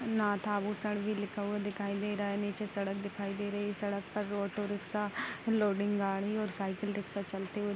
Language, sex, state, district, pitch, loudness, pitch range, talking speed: Hindi, female, Bihar, Vaishali, 205 Hz, -35 LUFS, 200-210 Hz, 200 wpm